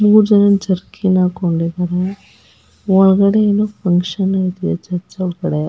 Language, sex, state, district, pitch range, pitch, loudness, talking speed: Kannada, female, Karnataka, Chamarajanagar, 180-200 Hz, 190 Hz, -15 LUFS, 105 wpm